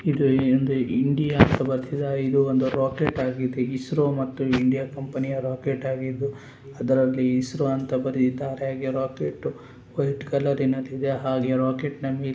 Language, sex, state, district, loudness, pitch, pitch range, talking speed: Kannada, male, Karnataka, Gulbarga, -24 LUFS, 135 Hz, 130-135 Hz, 135 wpm